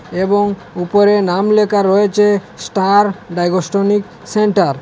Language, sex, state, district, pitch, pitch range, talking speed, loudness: Bengali, male, Assam, Hailakandi, 200 Hz, 185-205 Hz, 110 wpm, -14 LUFS